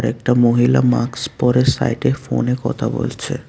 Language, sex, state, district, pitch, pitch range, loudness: Bengali, male, Tripura, West Tripura, 125 Hz, 120-125 Hz, -17 LUFS